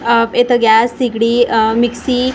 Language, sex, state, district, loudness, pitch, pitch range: Marathi, female, Maharashtra, Gondia, -13 LUFS, 235 Hz, 230-245 Hz